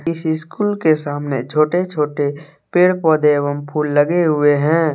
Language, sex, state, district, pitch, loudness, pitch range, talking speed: Hindi, male, Jharkhand, Deoghar, 150 Hz, -17 LUFS, 145-165 Hz, 145 wpm